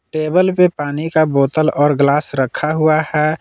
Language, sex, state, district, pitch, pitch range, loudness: Hindi, male, Jharkhand, Palamu, 155 Hz, 145-155 Hz, -15 LUFS